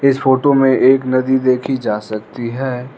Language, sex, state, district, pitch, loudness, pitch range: Hindi, male, Arunachal Pradesh, Lower Dibang Valley, 130 Hz, -15 LUFS, 125-135 Hz